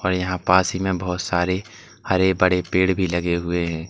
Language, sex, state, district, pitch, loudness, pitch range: Hindi, male, Uttar Pradesh, Lalitpur, 90 Hz, -21 LUFS, 90-95 Hz